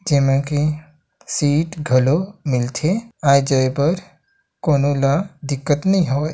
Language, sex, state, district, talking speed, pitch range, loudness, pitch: Hindi, male, Chhattisgarh, Sarguja, 150 wpm, 140-175 Hz, -19 LUFS, 145 Hz